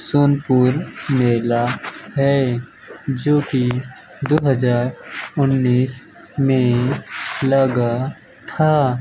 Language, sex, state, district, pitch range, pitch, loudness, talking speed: Hindi, male, Maharashtra, Mumbai Suburban, 125-140 Hz, 130 Hz, -19 LUFS, 75 wpm